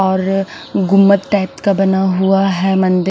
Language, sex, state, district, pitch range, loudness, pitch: Hindi, male, Punjab, Fazilka, 190-195 Hz, -14 LUFS, 190 Hz